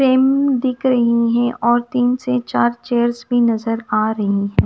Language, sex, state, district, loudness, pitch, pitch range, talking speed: Hindi, female, Punjab, Kapurthala, -17 LUFS, 240 Hz, 235-255 Hz, 180 wpm